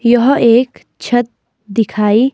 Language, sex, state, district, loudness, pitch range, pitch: Hindi, female, Himachal Pradesh, Shimla, -13 LUFS, 215-245 Hz, 235 Hz